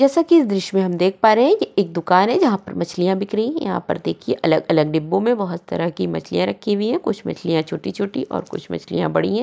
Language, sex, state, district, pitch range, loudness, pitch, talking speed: Hindi, female, Maharashtra, Chandrapur, 170-220 Hz, -19 LUFS, 195 Hz, 275 wpm